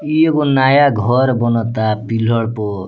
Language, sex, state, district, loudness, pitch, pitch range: Bhojpuri, male, Bihar, Muzaffarpur, -15 LUFS, 120 Hz, 110-140 Hz